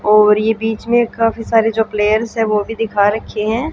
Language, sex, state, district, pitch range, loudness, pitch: Hindi, female, Haryana, Jhajjar, 210-225 Hz, -15 LUFS, 225 Hz